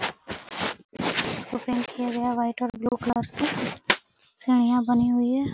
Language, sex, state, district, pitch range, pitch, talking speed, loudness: Hindi, female, Bihar, Araria, 240-245 Hz, 245 Hz, 150 wpm, -26 LUFS